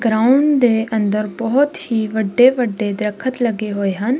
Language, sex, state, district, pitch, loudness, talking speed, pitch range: Punjabi, female, Punjab, Kapurthala, 225 Hz, -17 LUFS, 155 wpm, 215-250 Hz